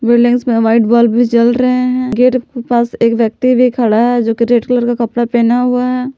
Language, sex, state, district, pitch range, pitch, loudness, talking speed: Hindi, female, Jharkhand, Palamu, 235-250 Hz, 240 Hz, -12 LUFS, 235 wpm